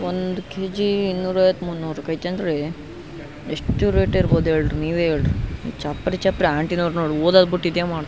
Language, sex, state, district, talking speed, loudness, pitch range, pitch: Kannada, male, Karnataka, Raichur, 155 wpm, -21 LUFS, 155-185 Hz, 170 Hz